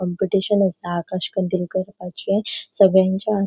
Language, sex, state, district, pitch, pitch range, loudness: Konkani, female, Goa, North and South Goa, 190 Hz, 180-195 Hz, -20 LUFS